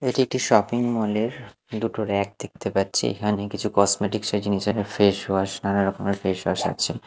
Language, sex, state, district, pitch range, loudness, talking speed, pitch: Bengali, male, Odisha, Malkangiri, 100-110 Hz, -24 LUFS, 170 wpm, 105 Hz